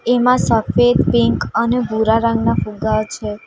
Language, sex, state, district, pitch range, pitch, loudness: Gujarati, female, Gujarat, Valsad, 210-240 Hz, 220 Hz, -16 LUFS